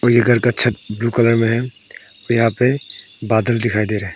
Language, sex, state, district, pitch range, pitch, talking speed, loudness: Hindi, male, Arunachal Pradesh, Papum Pare, 110-120 Hz, 115 Hz, 230 wpm, -17 LUFS